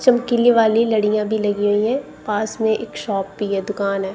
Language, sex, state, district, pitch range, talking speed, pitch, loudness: Hindi, female, Punjab, Kapurthala, 205-230 Hz, 215 wpm, 215 Hz, -19 LUFS